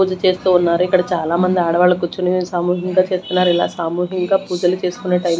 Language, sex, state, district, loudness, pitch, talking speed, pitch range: Telugu, female, Andhra Pradesh, Manyam, -17 LUFS, 180 Hz, 165 wpm, 175-185 Hz